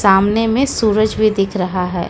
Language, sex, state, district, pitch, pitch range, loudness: Hindi, female, Uttar Pradesh, Lucknow, 210 Hz, 190-220 Hz, -15 LUFS